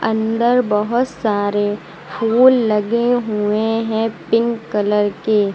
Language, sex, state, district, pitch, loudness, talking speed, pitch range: Hindi, female, Uttar Pradesh, Lucknow, 220 Hz, -17 LUFS, 110 wpm, 210-235 Hz